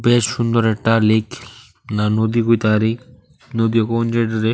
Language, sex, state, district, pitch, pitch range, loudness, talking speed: Bengali, male, Tripura, West Tripura, 115 Hz, 110-115 Hz, -17 LUFS, 160 wpm